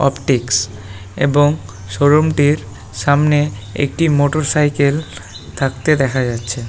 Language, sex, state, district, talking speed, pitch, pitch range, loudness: Bengali, male, West Bengal, Malda, 90 wpm, 135 Hz, 105-145 Hz, -16 LUFS